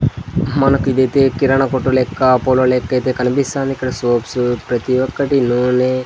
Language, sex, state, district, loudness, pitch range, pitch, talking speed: Telugu, male, Andhra Pradesh, Sri Satya Sai, -16 LUFS, 125-135 Hz, 130 Hz, 150 wpm